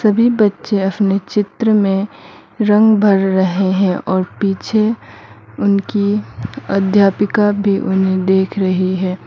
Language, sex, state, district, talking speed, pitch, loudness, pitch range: Hindi, female, Mizoram, Aizawl, 115 wpm, 195 Hz, -15 LUFS, 190-210 Hz